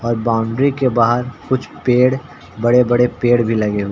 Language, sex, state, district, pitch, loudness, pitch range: Hindi, male, Uttar Pradesh, Ghazipur, 120 Hz, -16 LUFS, 115-130 Hz